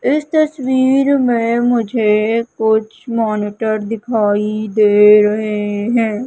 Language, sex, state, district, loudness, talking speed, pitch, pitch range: Hindi, female, Madhya Pradesh, Umaria, -15 LUFS, 95 wpm, 220 Hz, 210-240 Hz